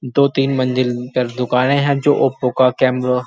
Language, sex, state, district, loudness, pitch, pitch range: Hindi, male, Uttar Pradesh, Muzaffarnagar, -16 LUFS, 130 Hz, 125-135 Hz